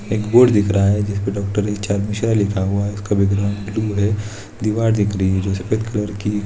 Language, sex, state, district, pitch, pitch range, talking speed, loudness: Hindi, male, Bihar, Saharsa, 105 Hz, 100-105 Hz, 230 wpm, -18 LUFS